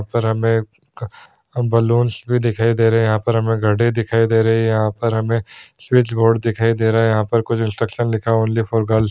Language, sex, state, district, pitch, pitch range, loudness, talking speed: Hindi, male, Bihar, Saran, 115 Hz, 110-115 Hz, -17 LUFS, 235 wpm